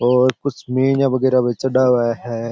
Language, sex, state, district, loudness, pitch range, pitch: Rajasthani, male, Rajasthan, Churu, -17 LUFS, 120-130 Hz, 125 Hz